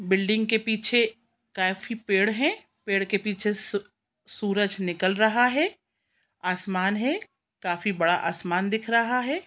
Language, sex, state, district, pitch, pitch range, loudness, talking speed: Hindi, female, Chhattisgarh, Sukma, 210 Hz, 190-235 Hz, -25 LUFS, 140 wpm